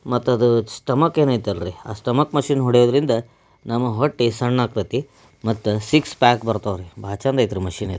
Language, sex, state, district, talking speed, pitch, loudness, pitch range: Kannada, male, Karnataka, Belgaum, 165 wpm, 120 Hz, -20 LUFS, 110-130 Hz